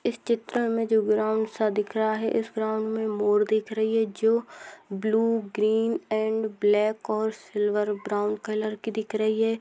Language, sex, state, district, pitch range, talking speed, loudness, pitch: Hindi, female, Rajasthan, Churu, 215-220 Hz, 180 wpm, -26 LUFS, 220 Hz